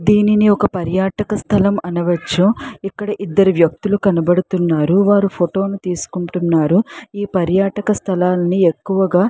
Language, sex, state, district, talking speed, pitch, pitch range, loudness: Telugu, female, Andhra Pradesh, Chittoor, 115 wpm, 195 Hz, 175-205 Hz, -16 LUFS